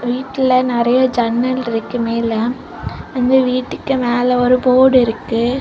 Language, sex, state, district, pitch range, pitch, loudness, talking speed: Tamil, female, Tamil Nadu, Kanyakumari, 235-255 Hz, 250 Hz, -15 LUFS, 115 wpm